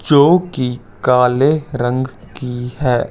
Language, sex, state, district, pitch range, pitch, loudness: Hindi, male, Chandigarh, Chandigarh, 125-145 Hz, 125 Hz, -16 LUFS